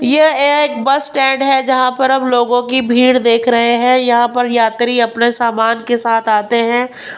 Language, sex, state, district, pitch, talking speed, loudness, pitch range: Hindi, female, Punjab, Pathankot, 245 Hz, 210 wpm, -12 LUFS, 235-265 Hz